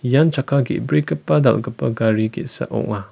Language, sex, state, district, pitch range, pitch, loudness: Garo, male, Meghalaya, West Garo Hills, 110-135 Hz, 115 Hz, -19 LUFS